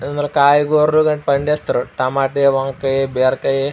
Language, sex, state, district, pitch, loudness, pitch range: Telugu, male, Andhra Pradesh, Srikakulam, 140 Hz, -16 LUFS, 135-145 Hz